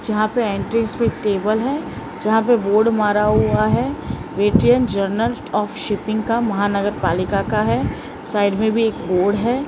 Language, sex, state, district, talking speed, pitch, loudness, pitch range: Hindi, male, Maharashtra, Mumbai Suburban, 160 wpm, 215 Hz, -19 LUFS, 205-230 Hz